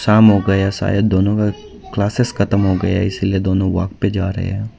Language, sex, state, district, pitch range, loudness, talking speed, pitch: Hindi, male, Arunachal Pradesh, Lower Dibang Valley, 95-105 Hz, -16 LUFS, 215 wpm, 100 Hz